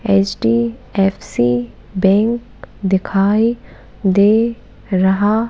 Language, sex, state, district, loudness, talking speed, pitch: Hindi, female, Madhya Pradesh, Bhopal, -16 LUFS, 55 wpm, 195 Hz